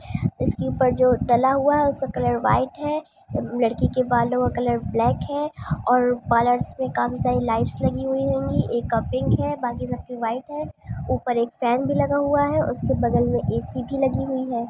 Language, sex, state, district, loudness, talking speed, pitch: Hindi, female, Andhra Pradesh, Anantapur, -22 LUFS, 165 wpm, 245 Hz